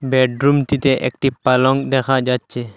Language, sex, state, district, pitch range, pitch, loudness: Bengali, male, Assam, Hailakandi, 125-135 Hz, 130 Hz, -17 LUFS